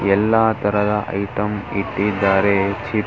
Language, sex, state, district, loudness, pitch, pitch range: Kannada, male, Karnataka, Dharwad, -19 LUFS, 105 Hz, 100-105 Hz